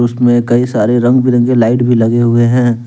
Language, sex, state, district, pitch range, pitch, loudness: Hindi, male, Jharkhand, Deoghar, 120-125 Hz, 120 Hz, -11 LUFS